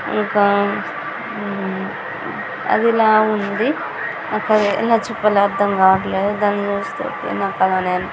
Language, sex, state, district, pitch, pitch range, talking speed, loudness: Telugu, female, Telangana, Nalgonda, 205 Hz, 195-215 Hz, 105 wpm, -18 LUFS